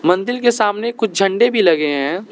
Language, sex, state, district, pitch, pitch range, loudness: Hindi, male, Arunachal Pradesh, Lower Dibang Valley, 210 Hz, 180-235 Hz, -16 LUFS